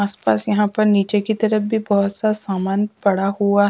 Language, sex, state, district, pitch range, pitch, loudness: Hindi, female, Punjab, Pathankot, 200-215 Hz, 205 Hz, -19 LUFS